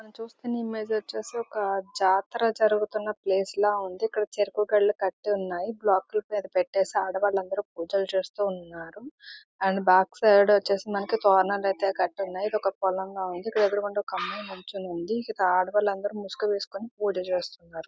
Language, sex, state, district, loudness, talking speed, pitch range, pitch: Telugu, female, Andhra Pradesh, Visakhapatnam, -26 LUFS, 180 wpm, 190-210 Hz, 200 Hz